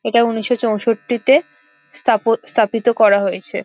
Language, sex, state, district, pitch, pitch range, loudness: Bengali, female, West Bengal, Dakshin Dinajpur, 230 Hz, 210-240 Hz, -16 LUFS